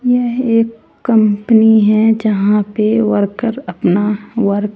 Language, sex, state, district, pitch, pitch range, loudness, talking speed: Hindi, female, Haryana, Charkhi Dadri, 215 Hz, 205-230 Hz, -13 LUFS, 125 wpm